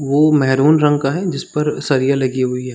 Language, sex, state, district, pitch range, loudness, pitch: Hindi, male, Chhattisgarh, Sarguja, 130-150 Hz, -16 LUFS, 140 Hz